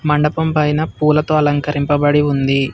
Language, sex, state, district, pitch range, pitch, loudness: Telugu, male, Telangana, Hyderabad, 145-150 Hz, 150 Hz, -15 LUFS